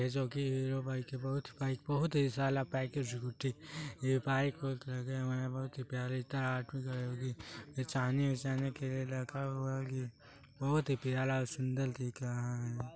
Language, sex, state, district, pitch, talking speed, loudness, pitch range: Hindi, male, Chhattisgarh, Sarguja, 130 Hz, 155 wpm, -37 LUFS, 130-135 Hz